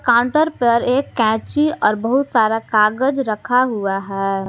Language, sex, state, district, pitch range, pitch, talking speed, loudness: Hindi, female, Jharkhand, Garhwa, 215-260 Hz, 235 Hz, 145 wpm, -17 LUFS